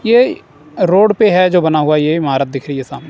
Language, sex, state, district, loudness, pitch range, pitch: Hindi, male, Punjab, Kapurthala, -13 LUFS, 140-210 Hz, 165 Hz